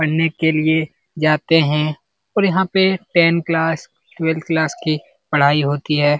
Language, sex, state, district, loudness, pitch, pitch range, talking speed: Hindi, male, Bihar, Jamui, -17 LUFS, 160 Hz, 150-165 Hz, 155 wpm